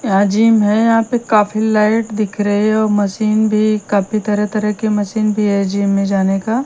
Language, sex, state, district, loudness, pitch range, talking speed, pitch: Hindi, female, Punjab, Kapurthala, -15 LUFS, 205-220 Hz, 205 wpm, 215 Hz